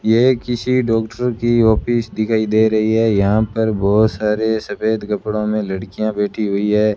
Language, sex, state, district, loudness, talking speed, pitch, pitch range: Hindi, male, Rajasthan, Bikaner, -17 LUFS, 170 wpm, 110 Hz, 105-115 Hz